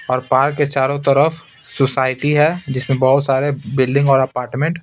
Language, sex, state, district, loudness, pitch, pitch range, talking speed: Hindi, male, Bihar, Patna, -16 LUFS, 135 Hz, 130-145 Hz, 175 wpm